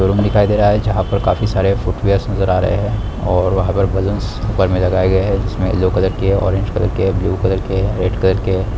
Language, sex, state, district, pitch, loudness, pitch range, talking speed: Hindi, male, Bihar, Bhagalpur, 95 Hz, -16 LUFS, 95-105 Hz, 265 wpm